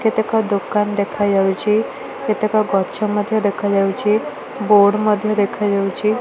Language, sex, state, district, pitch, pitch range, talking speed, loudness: Odia, female, Odisha, Malkangiri, 210 Hz, 200-215 Hz, 95 wpm, -18 LUFS